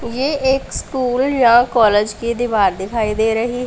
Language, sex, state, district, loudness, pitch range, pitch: Hindi, female, Punjab, Pathankot, -16 LUFS, 220-250 Hz, 235 Hz